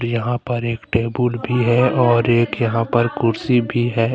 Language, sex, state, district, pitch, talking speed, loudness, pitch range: Hindi, male, Jharkhand, Deoghar, 120 Hz, 190 wpm, -18 LUFS, 115-120 Hz